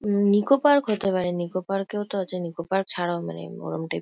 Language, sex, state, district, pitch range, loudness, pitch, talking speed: Bengali, female, West Bengal, Kolkata, 170-205 Hz, -25 LUFS, 185 Hz, 255 wpm